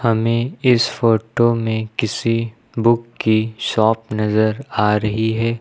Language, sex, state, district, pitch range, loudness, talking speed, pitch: Hindi, male, Uttar Pradesh, Lucknow, 110-115 Hz, -18 LUFS, 130 wpm, 115 Hz